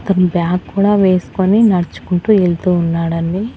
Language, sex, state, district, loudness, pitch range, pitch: Telugu, female, Andhra Pradesh, Annamaya, -14 LUFS, 175-195 Hz, 180 Hz